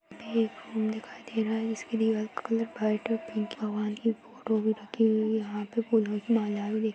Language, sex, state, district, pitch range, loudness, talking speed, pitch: Kumaoni, female, Uttarakhand, Uttarkashi, 215-225 Hz, -30 LUFS, 260 wpm, 220 Hz